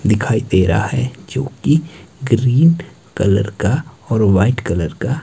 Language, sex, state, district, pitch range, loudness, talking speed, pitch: Hindi, male, Himachal Pradesh, Shimla, 105-135 Hz, -16 LUFS, 150 wpm, 120 Hz